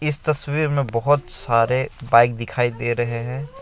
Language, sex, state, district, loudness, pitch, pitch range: Hindi, male, Assam, Kamrup Metropolitan, -20 LUFS, 125 Hz, 115-145 Hz